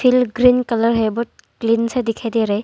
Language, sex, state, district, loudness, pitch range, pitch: Hindi, female, Arunachal Pradesh, Longding, -18 LUFS, 225-250 Hz, 230 Hz